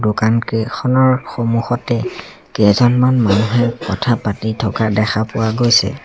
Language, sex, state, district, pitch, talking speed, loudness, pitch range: Assamese, male, Assam, Sonitpur, 115 Hz, 100 wpm, -16 LUFS, 110-120 Hz